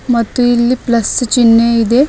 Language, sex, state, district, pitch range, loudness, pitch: Kannada, female, Karnataka, Bidar, 230-245 Hz, -11 LUFS, 240 Hz